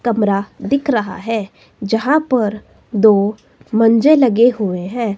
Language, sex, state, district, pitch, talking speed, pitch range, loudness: Hindi, female, Himachal Pradesh, Shimla, 225 Hz, 130 wpm, 205-245 Hz, -15 LUFS